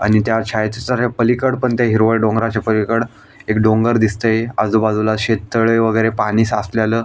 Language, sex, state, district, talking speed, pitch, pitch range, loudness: Marathi, male, Maharashtra, Aurangabad, 145 wpm, 110 Hz, 110-115 Hz, -16 LUFS